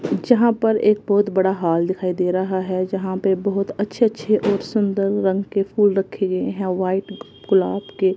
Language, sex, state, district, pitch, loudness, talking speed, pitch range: Hindi, female, Punjab, Kapurthala, 195 Hz, -20 LUFS, 200 wpm, 190-205 Hz